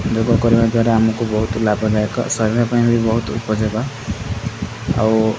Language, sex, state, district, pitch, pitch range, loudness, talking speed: Odia, male, Odisha, Khordha, 110 Hz, 110-115 Hz, -18 LUFS, 135 wpm